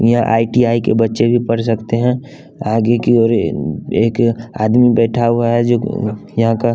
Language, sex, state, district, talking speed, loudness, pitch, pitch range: Hindi, male, Bihar, West Champaran, 180 wpm, -15 LUFS, 115 Hz, 115-120 Hz